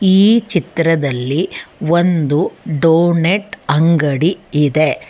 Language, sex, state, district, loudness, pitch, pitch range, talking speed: Kannada, female, Karnataka, Bangalore, -15 LUFS, 165 Hz, 155-180 Hz, 70 wpm